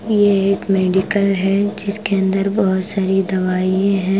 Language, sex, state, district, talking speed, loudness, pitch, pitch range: Hindi, female, Punjab, Kapurthala, 145 wpm, -17 LUFS, 195 Hz, 190-200 Hz